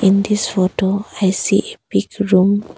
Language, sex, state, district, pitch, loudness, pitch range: English, female, Arunachal Pradesh, Longding, 195 Hz, -17 LUFS, 185-205 Hz